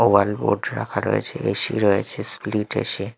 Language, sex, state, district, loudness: Bengali, male, Odisha, Malkangiri, -22 LUFS